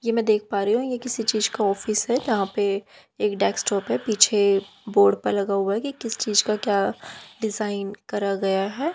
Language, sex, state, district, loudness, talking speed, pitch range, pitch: Hindi, female, Haryana, Jhajjar, -23 LUFS, 210 wpm, 200-220 Hz, 210 Hz